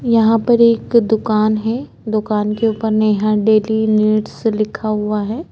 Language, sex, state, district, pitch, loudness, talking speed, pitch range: Hindi, female, Chhattisgarh, Korba, 215 Hz, -16 LUFS, 150 wpm, 215-225 Hz